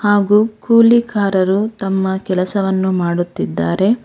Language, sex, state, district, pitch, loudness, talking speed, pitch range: Kannada, female, Karnataka, Bangalore, 195 Hz, -15 LUFS, 75 wpm, 185-210 Hz